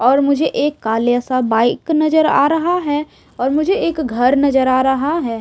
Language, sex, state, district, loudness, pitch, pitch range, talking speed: Hindi, female, Odisha, Sambalpur, -16 LUFS, 280 Hz, 250-305 Hz, 200 wpm